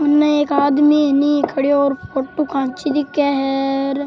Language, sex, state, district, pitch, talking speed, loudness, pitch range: Rajasthani, male, Rajasthan, Churu, 285 Hz, 130 wpm, -17 LUFS, 275-295 Hz